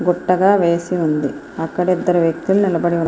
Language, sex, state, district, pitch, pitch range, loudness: Telugu, female, Andhra Pradesh, Srikakulam, 175 Hz, 165-180 Hz, -17 LUFS